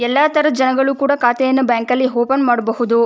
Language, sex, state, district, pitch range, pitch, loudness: Kannada, female, Karnataka, Chamarajanagar, 240-275 Hz, 260 Hz, -15 LUFS